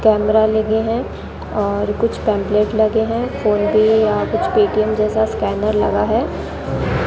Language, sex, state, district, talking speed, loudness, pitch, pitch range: Hindi, female, Rajasthan, Bikaner, 145 wpm, -17 LUFS, 215 Hz, 210-220 Hz